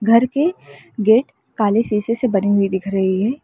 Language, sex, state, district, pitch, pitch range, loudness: Hindi, female, Uttar Pradesh, Lalitpur, 220 Hz, 200-235 Hz, -18 LUFS